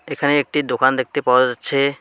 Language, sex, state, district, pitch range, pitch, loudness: Bengali, male, West Bengal, Alipurduar, 130-140 Hz, 140 Hz, -18 LUFS